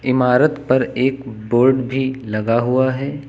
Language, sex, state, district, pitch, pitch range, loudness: Hindi, male, Uttar Pradesh, Lucknow, 130 Hz, 125-135 Hz, -17 LUFS